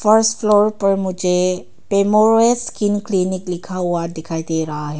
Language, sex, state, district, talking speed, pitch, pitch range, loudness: Hindi, female, Arunachal Pradesh, Papum Pare, 155 wpm, 190 Hz, 175-210 Hz, -17 LUFS